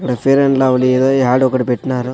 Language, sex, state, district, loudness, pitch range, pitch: Telugu, male, Andhra Pradesh, Sri Satya Sai, -14 LUFS, 125-135 Hz, 130 Hz